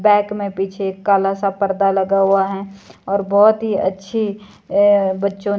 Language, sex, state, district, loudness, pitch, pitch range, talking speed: Hindi, female, Himachal Pradesh, Shimla, -17 LUFS, 200 Hz, 195-205 Hz, 160 wpm